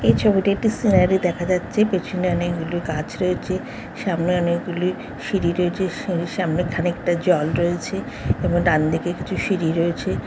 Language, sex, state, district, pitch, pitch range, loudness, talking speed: Bengali, female, West Bengal, Jhargram, 175 Hz, 170-185 Hz, -21 LUFS, 165 wpm